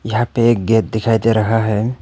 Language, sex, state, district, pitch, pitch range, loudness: Hindi, male, Arunachal Pradesh, Papum Pare, 115 Hz, 110-115 Hz, -16 LUFS